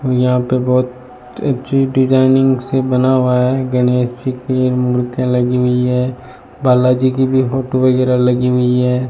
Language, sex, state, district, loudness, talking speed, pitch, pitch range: Hindi, male, Rajasthan, Bikaner, -14 LUFS, 165 wpm, 125 Hz, 125-130 Hz